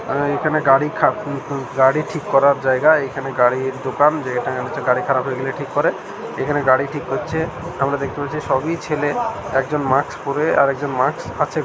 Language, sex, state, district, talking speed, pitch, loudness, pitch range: Bengali, male, West Bengal, Jhargram, 180 wpm, 140 Hz, -19 LUFS, 130-150 Hz